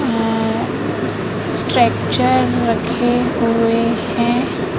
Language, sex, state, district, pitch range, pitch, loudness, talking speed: Hindi, female, Madhya Pradesh, Katni, 225-240 Hz, 230 Hz, -17 LUFS, 65 wpm